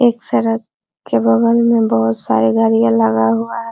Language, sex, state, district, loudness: Hindi, female, Bihar, Araria, -14 LUFS